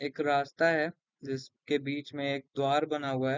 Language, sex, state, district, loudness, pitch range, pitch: Hindi, male, Uttar Pradesh, Varanasi, -31 LUFS, 135-150 Hz, 140 Hz